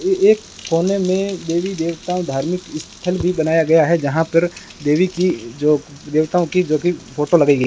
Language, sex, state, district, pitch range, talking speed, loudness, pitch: Hindi, male, Rajasthan, Bikaner, 155-180 Hz, 190 wpm, -18 LUFS, 165 Hz